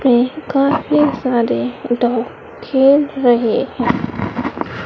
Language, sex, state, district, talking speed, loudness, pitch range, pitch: Hindi, female, Madhya Pradesh, Dhar, 85 wpm, -16 LUFS, 240-280 Hz, 255 Hz